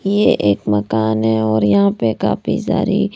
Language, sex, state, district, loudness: Hindi, female, Haryana, Rohtak, -16 LUFS